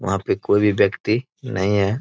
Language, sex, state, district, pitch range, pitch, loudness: Hindi, male, Bihar, Bhagalpur, 100-120 Hz, 105 Hz, -20 LUFS